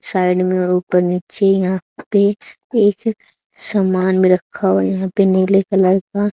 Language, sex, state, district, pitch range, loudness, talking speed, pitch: Hindi, female, Haryana, Charkhi Dadri, 185-200 Hz, -16 LUFS, 170 wpm, 190 Hz